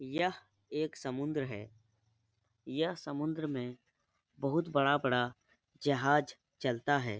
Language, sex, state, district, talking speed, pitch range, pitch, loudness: Hindi, male, Uttar Pradesh, Etah, 100 wpm, 115-150 Hz, 140 Hz, -34 LUFS